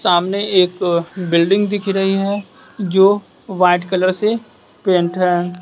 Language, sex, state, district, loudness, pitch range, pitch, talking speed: Hindi, male, Bihar, West Champaran, -16 LUFS, 180-200 Hz, 185 Hz, 130 wpm